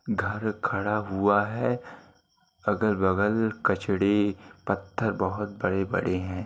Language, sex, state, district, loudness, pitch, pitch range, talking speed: Hindi, male, Uttarakhand, Uttarkashi, -27 LUFS, 100 Hz, 95-105 Hz, 95 wpm